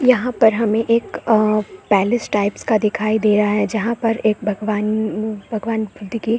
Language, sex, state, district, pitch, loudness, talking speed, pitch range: Hindi, female, Chhattisgarh, Korba, 220 Hz, -18 LUFS, 190 wpm, 210-225 Hz